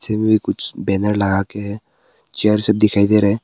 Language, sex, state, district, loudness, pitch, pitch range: Hindi, male, Arunachal Pradesh, Papum Pare, -17 LUFS, 105 Hz, 100-110 Hz